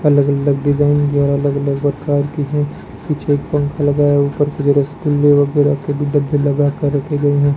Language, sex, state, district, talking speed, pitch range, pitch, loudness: Hindi, male, Rajasthan, Bikaner, 160 wpm, 140-145 Hz, 145 Hz, -16 LUFS